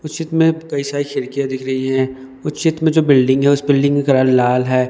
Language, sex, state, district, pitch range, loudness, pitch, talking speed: Hindi, male, Madhya Pradesh, Dhar, 130-150 Hz, -16 LUFS, 140 Hz, 255 wpm